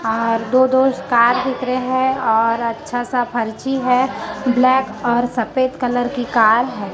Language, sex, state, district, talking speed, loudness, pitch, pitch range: Hindi, female, Chhattisgarh, Raipur, 165 wpm, -17 LUFS, 245 Hz, 235-260 Hz